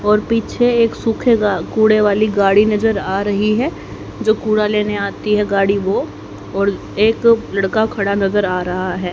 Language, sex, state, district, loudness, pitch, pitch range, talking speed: Hindi, female, Haryana, Jhajjar, -16 LUFS, 210 Hz, 200-220 Hz, 170 wpm